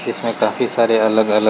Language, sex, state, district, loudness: Hindi, male, Chhattisgarh, Sarguja, -16 LUFS